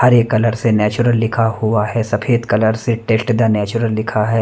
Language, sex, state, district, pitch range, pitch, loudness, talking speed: Hindi, male, Chhattisgarh, Raipur, 110-115 Hz, 115 Hz, -16 LUFS, 205 wpm